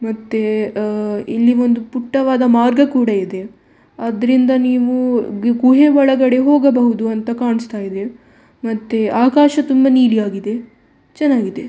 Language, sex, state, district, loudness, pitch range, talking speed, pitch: Kannada, female, Karnataka, Dakshina Kannada, -15 LUFS, 220-255 Hz, 110 wpm, 240 Hz